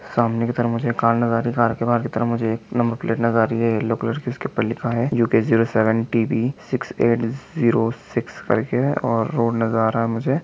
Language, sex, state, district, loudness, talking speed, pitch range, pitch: Garhwali, male, Uttarakhand, Tehri Garhwal, -21 LUFS, 270 wpm, 115-120 Hz, 115 Hz